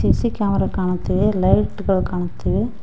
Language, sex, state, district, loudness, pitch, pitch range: Kannada, female, Karnataka, Koppal, -20 LUFS, 190 Hz, 180-205 Hz